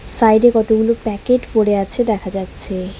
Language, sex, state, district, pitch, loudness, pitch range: Bengali, female, West Bengal, Cooch Behar, 220 Hz, -16 LUFS, 195-230 Hz